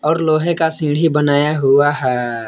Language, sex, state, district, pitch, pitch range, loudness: Hindi, male, Jharkhand, Palamu, 150 Hz, 140-160 Hz, -15 LUFS